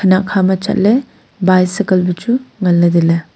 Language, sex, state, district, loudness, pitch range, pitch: Wancho, female, Arunachal Pradesh, Longding, -14 LUFS, 180-205 Hz, 190 Hz